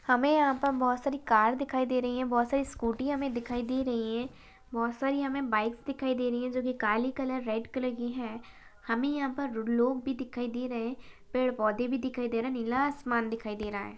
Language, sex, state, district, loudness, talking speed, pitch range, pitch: Hindi, female, Maharashtra, Chandrapur, -31 LUFS, 245 wpm, 230-265 Hz, 250 Hz